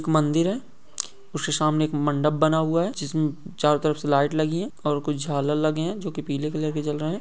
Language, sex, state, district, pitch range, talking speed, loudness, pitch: Hindi, male, Bihar, East Champaran, 150-160 Hz, 260 wpm, -24 LUFS, 155 Hz